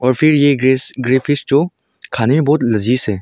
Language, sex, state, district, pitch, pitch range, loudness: Hindi, male, Arunachal Pradesh, Longding, 130 Hz, 125-145 Hz, -14 LUFS